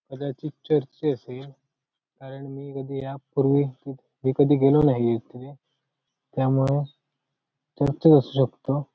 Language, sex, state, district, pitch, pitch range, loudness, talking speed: Marathi, male, Maharashtra, Sindhudurg, 140 Hz, 135-145 Hz, -23 LUFS, 120 wpm